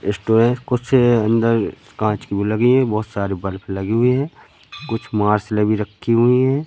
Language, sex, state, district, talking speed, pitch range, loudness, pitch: Hindi, male, Madhya Pradesh, Katni, 180 wpm, 105-125 Hz, -18 LUFS, 110 Hz